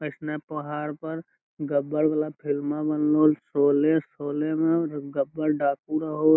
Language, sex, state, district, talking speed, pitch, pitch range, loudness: Magahi, male, Bihar, Lakhisarai, 120 wpm, 150 Hz, 145-155 Hz, -25 LUFS